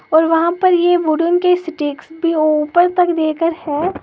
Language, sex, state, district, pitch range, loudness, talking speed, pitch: Hindi, female, Uttar Pradesh, Lalitpur, 315-350 Hz, -15 LUFS, 195 wpm, 330 Hz